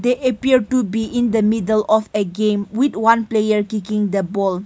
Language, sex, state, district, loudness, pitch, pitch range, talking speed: English, female, Nagaland, Kohima, -18 LUFS, 215 Hz, 210-235 Hz, 180 wpm